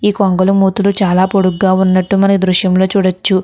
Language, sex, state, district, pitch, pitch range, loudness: Telugu, female, Andhra Pradesh, Guntur, 190 Hz, 185-195 Hz, -12 LUFS